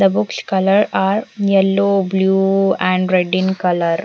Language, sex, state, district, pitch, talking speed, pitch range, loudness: English, female, Punjab, Pathankot, 190 Hz, 150 wpm, 185-195 Hz, -16 LUFS